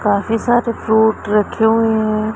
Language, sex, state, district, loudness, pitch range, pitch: Hindi, female, Punjab, Pathankot, -15 LUFS, 215-225 Hz, 220 Hz